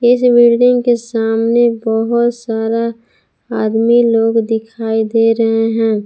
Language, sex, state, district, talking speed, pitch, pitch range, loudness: Hindi, female, Jharkhand, Palamu, 120 wpm, 225 Hz, 225-235 Hz, -13 LUFS